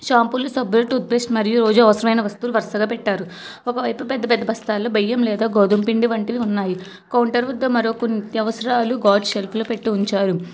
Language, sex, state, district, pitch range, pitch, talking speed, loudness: Telugu, female, Telangana, Hyderabad, 210-240 Hz, 225 Hz, 170 wpm, -19 LUFS